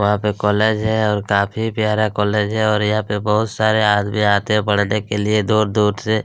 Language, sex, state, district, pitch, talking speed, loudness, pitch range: Hindi, male, Chhattisgarh, Kabirdham, 105 Hz, 230 wpm, -17 LUFS, 105-110 Hz